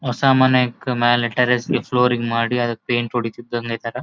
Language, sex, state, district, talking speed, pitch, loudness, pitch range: Kannada, male, Karnataka, Bellary, 150 wpm, 120 Hz, -19 LUFS, 120-125 Hz